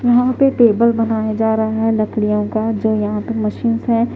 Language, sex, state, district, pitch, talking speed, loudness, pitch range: Hindi, female, Haryana, Jhajjar, 225 Hz, 200 wpm, -16 LUFS, 215-235 Hz